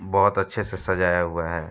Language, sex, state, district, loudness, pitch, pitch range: Hindi, male, Uttar Pradesh, Hamirpur, -23 LUFS, 95 Hz, 85-95 Hz